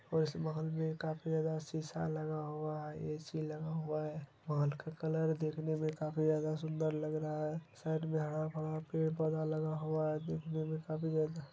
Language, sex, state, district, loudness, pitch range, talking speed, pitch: Hindi, male, Bihar, Araria, -38 LUFS, 155-160 Hz, 190 wpm, 155 Hz